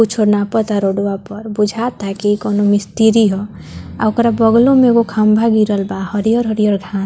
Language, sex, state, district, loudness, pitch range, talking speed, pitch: Bhojpuri, female, Bihar, Muzaffarpur, -14 LUFS, 205-225 Hz, 160 wpm, 210 Hz